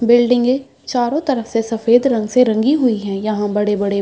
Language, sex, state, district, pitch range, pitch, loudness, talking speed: Hindi, female, Bihar, Saharsa, 215-250 Hz, 235 Hz, -16 LUFS, 225 wpm